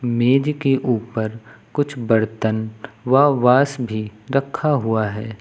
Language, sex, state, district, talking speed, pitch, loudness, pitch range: Hindi, male, Uttar Pradesh, Lucknow, 120 wpm, 120 Hz, -19 LUFS, 110-135 Hz